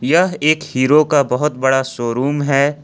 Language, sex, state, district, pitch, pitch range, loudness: Hindi, male, Jharkhand, Ranchi, 145 Hz, 130-155 Hz, -16 LUFS